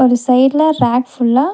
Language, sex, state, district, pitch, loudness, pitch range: Tamil, female, Tamil Nadu, Nilgiris, 255 Hz, -13 LUFS, 245-275 Hz